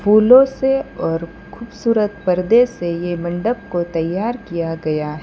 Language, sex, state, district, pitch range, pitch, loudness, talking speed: Hindi, female, Gujarat, Valsad, 170-230 Hz, 200 Hz, -17 LUFS, 150 wpm